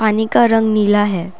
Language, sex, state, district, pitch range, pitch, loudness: Hindi, female, Assam, Kamrup Metropolitan, 205-220 Hz, 215 Hz, -14 LUFS